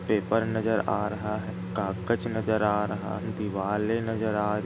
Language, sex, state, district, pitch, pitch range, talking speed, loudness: Hindi, male, Maharashtra, Solapur, 105 Hz, 95-110 Hz, 165 wpm, -28 LUFS